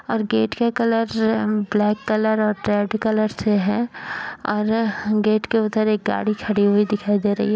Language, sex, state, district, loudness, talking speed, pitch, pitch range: Hindi, female, Uttar Pradesh, Jyotiba Phule Nagar, -20 LUFS, 180 wpm, 215 Hz, 210-220 Hz